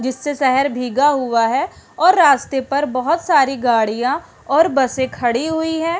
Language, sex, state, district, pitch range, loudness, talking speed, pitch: Hindi, female, Uttarakhand, Uttarkashi, 255-310 Hz, -17 LUFS, 160 wpm, 270 Hz